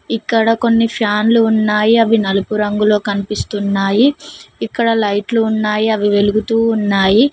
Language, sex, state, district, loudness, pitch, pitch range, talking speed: Telugu, female, Telangana, Mahabubabad, -14 LUFS, 215 Hz, 205-230 Hz, 115 wpm